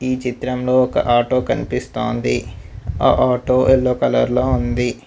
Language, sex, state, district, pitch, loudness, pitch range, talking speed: Telugu, male, Telangana, Mahabubabad, 125 Hz, -17 LUFS, 110-130 Hz, 130 wpm